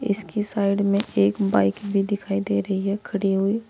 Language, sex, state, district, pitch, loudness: Hindi, female, Uttar Pradesh, Saharanpur, 200 Hz, -22 LUFS